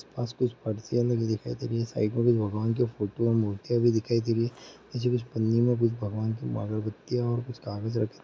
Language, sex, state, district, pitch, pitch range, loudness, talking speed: Hindi, male, Bihar, Gaya, 115 Hz, 110-120 Hz, -28 LUFS, 240 wpm